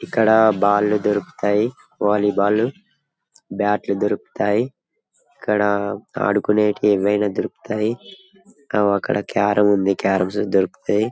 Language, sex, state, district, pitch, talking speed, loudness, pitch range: Telugu, male, Telangana, Karimnagar, 105 Hz, 110 wpm, -19 LUFS, 100-110 Hz